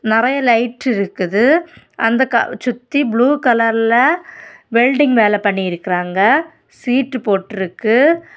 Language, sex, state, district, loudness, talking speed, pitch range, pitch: Tamil, female, Tamil Nadu, Kanyakumari, -15 LUFS, 85 wpm, 210-265 Hz, 235 Hz